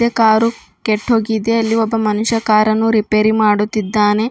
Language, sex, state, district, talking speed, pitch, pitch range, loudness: Kannada, female, Karnataka, Bidar, 110 wpm, 220 Hz, 215-225 Hz, -15 LUFS